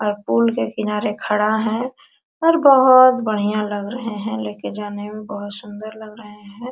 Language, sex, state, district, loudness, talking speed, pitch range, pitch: Hindi, female, Bihar, Araria, -18 LUFS, 180 wpm, 205-225 Hz, 210 Hz